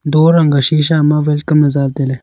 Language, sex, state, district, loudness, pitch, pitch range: Wancho, male, Arunachal Pradesh, Longding, -12 LUFS, 150 Hz, 140-155 Hz